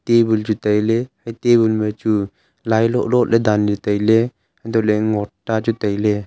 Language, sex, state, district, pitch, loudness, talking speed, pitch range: Wancho, male, Arunachal Pradesh, Longding, 110 Hz, -18 LUFS, 170 wpm, 105-115 Hz